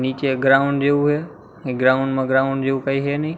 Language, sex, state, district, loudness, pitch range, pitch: Gujarati, male, Gujarat, Gandhinagar, -19 LUFS, 130-145 Hz, 135 Hz